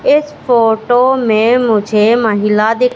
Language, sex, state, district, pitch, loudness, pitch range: Hindi, female, Madhya Pradesh, Katni, 230 Hz, -12 LUFS, 220-250 Hz